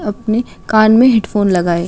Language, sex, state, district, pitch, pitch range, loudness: Hindi, female, Uttar Pradesh, Gorakhpur, 215 Hz, 195-225 Hz, -13 LUFS